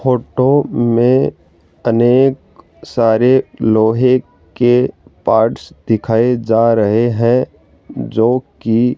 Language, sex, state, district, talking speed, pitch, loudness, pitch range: Hindi, male, Rajasthan, Jaipur, 95 wpm, 120 Hz, -14 LUFS, 110-125 Hz